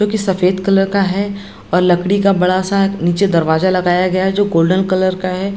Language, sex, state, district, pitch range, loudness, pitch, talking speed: Hindi, female, Bihar, Jamui, 180-200 Hz, -14 LUFS, 185 Hz, 225 wpm